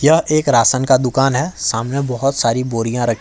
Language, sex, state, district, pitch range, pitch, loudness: Hindi, male, Jharkhand, Ranchi, 115-140 Hz, 130 Hz, -16 LUFS